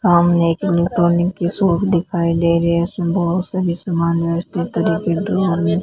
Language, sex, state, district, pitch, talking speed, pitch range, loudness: Hindi, female, Rajasthan, Bikaner, 170 Hz, 175 wpm, 170-180 Hz, -17 LUFS